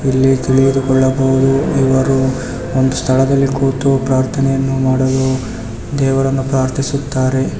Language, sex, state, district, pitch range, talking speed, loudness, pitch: Kannada, male, Karnataka, Raichur, 130-135 Hz, 85 wpm, -14 LUFS, 130 Hz